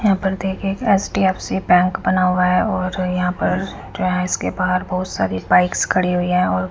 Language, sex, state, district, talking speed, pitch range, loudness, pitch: Hindi, female, Punjab, Fazilka, 205 wpm, 180-190 Hz, -18 LUFS, 185 Hz